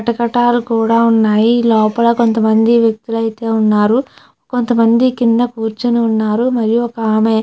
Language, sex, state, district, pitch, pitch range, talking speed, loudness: Telugu, female, Andhra Pradesh, Chittoor, 230 Hz, 220-235 Hz, 115 wpm, -13 LUFS